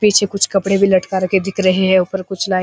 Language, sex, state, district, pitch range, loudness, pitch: Hindi, male, Uttarakhand, Uttarkashi, 185-195 Hz, -15 LUFS, 190 Hz